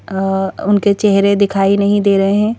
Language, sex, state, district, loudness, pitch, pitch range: Hindi, female, Madhya Pradesh, Bhopal, -13 LUFS, 200 Hz, 195-205 Hz